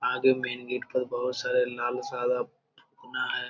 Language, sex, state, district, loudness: Hindi, male, Bihar, Jamui, -29 LUFS